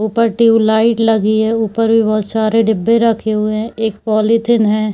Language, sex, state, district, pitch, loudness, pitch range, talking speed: Hindi, female, Bihar, Darbhanga, 220 Hz, -14 LUFS, 215-225 Hz, 195 wpm